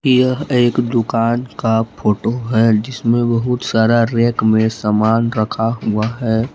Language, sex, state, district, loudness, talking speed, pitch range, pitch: Hindi, male, Jharkhand, Palamu, -16 LUFS, 135 wpm, 110-120 Hz, 115 Hz